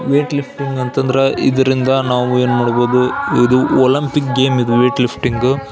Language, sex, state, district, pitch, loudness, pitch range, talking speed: Kannada, male, Karnataka, Belgaum, 130 Hz, -14 LUFS, 125-135 Hz, 145 wpm